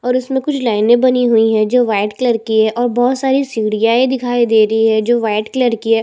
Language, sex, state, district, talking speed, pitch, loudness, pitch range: Hindi, female, Chhattisgarh, Bastar, 190 wpm, 235 Hz, -14 LUFS, 220-250 Hz